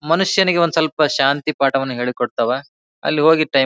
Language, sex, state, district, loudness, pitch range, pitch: Kannada, male, Karnataka, Bijapur, -17 LUFS, 135-160 Hz, 145 Hz